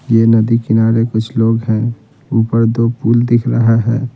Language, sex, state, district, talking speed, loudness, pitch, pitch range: Hindi, male, Bihar, Patna, 175 wpm, -13 LUFS, 115 Hz, 115-120 Hz